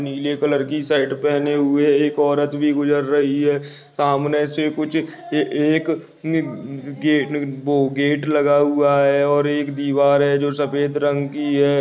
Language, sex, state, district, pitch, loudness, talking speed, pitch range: Hindi, male, Maharashtra, Nagpur, 145 Hz, -19 LUFS, 145 wpm, 140-150 Hz